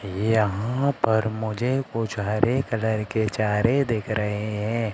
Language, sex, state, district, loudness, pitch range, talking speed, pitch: Hindi, male, Madhya Pradesh, Katni, -24 LUFS, 105-115 Hz, 135 wpm, 110 Hz